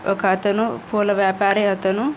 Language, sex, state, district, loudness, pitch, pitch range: Telugu, female, Andhra Pradesh, Anantapur, -19 LUFS, 200 Hz, 195-210 Hz